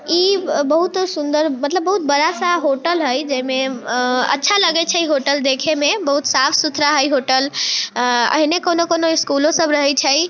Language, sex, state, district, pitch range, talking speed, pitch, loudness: Maithili, female, Bihar, Sitamarhi, 280-335 Hz, 165 wpm, 300 Hz, -16 LUFS